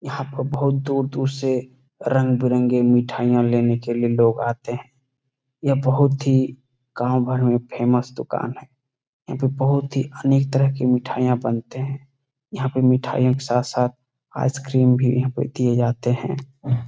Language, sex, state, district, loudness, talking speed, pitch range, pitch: Hindi, male, Bihar, Saran, -21 LUFS, 155 wpm, 125-135 Hz, 130 Hz